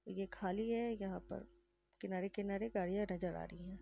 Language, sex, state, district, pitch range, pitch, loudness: Hindi, female, Uttar Pradesh, Varanasi, 185-215 Hz, 195 Hz, -42 LUFS